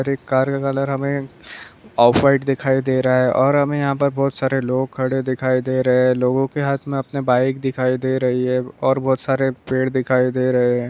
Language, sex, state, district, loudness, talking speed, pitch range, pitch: Hindi, male, Bihar, Darbhanga, -19 LUFS, 240 wpm, 130-135 Hz, 130 Hz